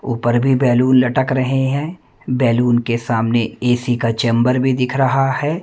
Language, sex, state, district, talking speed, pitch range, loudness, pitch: Hindi, male, Madhya Pradesh, Umaria, 170 wpm, 120-135 Hz, -16 LUFS, 125 Hz